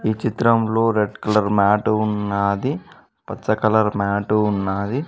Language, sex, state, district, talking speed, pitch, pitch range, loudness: Telugu, male, Telangana, Mahabubabad, 105 wpm, 105 Hz, 100-110 Hz, -19 LUFS